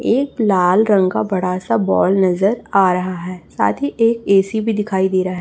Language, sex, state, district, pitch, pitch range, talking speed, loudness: Hindi, female, Chhattisgarh, Raipur, 195 Hz, 185-220 Hz, 200 wpm, -16 LUFS